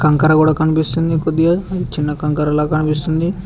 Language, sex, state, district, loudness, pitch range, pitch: Telugu, male, Telangana, Mahabubabad, -16 LUFS, 150-165 Hz, 155 Hz